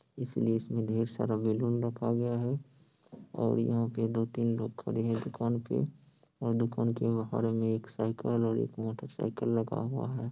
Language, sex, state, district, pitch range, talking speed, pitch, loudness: Hindi, male, Bihar, Sitamarhi, 115-120 Hz, 180 wpm, 115 Hz, -32 LUFS